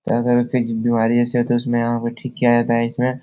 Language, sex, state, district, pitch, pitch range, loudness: Hindi, male, Bihar, Jahanabad, 120 Hz, 115-120 Hz, -18 LUFS